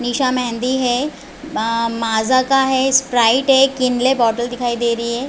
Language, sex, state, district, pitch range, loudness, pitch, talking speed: Hindi, female, Chhattisgarh, Raigarh, 235-265 Hz, -16 LUFS, 250 Hz, 170 wpm